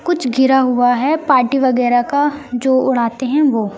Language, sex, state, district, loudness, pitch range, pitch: Hindi, female, Bihar, Kaimur, -15 LUFS, 245-285 Hz, 260 Hz